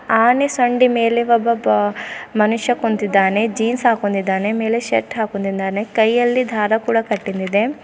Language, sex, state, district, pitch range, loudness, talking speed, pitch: Kannada, female, Karnataka, Bidar, 205-235 Hz, -17 LUFS, 120 wpm, 225 Hz